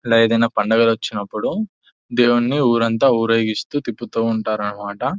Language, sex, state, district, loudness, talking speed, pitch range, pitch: Telugu, male, Telangana, Nalgonda, -18 LUFS, 105 wpm, 110-120 Hz, 115 Hz